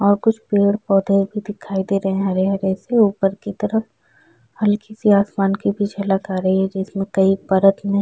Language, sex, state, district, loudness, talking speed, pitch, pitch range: Hindi, female, Uttar Pradesh, Jyotiba Phule Nagar, -19 LUFS, 210 wpm, 200 Hz, 195-205 Hz